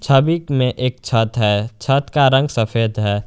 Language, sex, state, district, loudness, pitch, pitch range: Hindi, male, Jharkhand, Garhwa, -17 LUFS, 125 Hz, 110-135 Hz